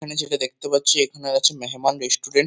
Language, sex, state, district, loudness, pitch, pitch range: Bengali, male, West Bengal, Kolkata, -20 LUFS, 140 Hz, 135-150 Hz